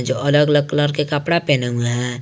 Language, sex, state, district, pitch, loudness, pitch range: Hindi, male, Jharkhand, Garhwa, 145 Hz, -18 LUFS, 125-150 Hz